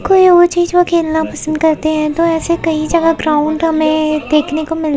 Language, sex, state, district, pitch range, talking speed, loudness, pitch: Hindi, female, Uttar Pradesh, Muzaffarnagar, 310-335 Hz, 220 wpm, -13 LUFS, 320 Hz